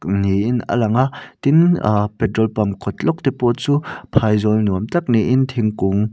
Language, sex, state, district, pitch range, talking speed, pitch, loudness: Mizo, male, Mizoram, Aizawl, 105-130 Hz, 175 wpm, 110 Hz, -18 LUFS